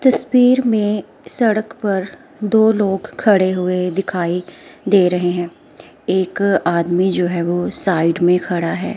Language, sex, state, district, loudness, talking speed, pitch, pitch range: Hindi, female, Himachal Pradesh, Shimla, -17 LUFS, 140 wpm, 190 Hz, 175-215 Hz